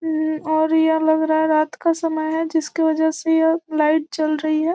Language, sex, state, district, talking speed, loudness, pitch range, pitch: Hindi, female, Bihar, Gopalganj, 225 wpm, -19 LUFS, 315-320 Hz, 315 Hz